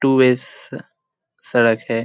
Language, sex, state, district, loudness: Hindi, male, Bihar, Jamui, -17 LUFS